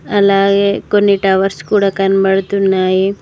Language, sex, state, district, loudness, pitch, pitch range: Telugu, female, Telangana, Mahabubabad, -13 LUFS, 195 Hz, 195-200 Hz